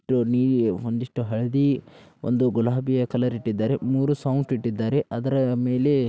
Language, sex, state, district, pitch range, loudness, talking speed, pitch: Kannada, male, Karnataka, Dharwad, 120-135 Hz, -24 LUFS, 130 wpm, 125 Hz